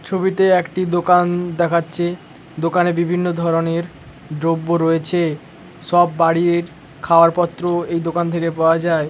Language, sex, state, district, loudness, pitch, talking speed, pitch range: Bengali, male, West Bengal, Paschim Medinipur, -17 LUFS, 170 Hz, 125 wpm, 165-175 Hz